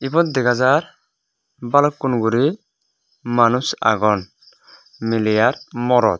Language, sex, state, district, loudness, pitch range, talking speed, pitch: Chakma, male, Tripura, West Tripura, -18 LUFS, 115-135 Hz, 95 wpm, 125 Hz